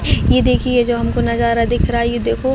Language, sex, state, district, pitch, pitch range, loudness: Hindi, female, Chhattisgarh, Raigarh, 235 Hz, 230-240 Hz, -16 LUFS